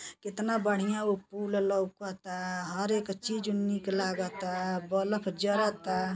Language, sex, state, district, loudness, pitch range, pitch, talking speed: Bhojpuri, female, Uttar Pradesh, Gorakhpur, -32 LUFS, 185-205 Hz, 195 Hz, 115 wpm